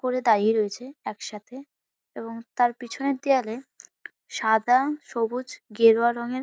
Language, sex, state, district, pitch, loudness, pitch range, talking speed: Bengali, female, West Bengal, North 24 Parganas, 240 Hz, -24 LUFS, 225-260 Hz, 110 wpm